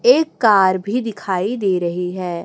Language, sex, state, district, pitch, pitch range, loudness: Hindi, female, Chhattisgarh, Raipur, 190 Hz, 180-225 Hz, -18 LUFS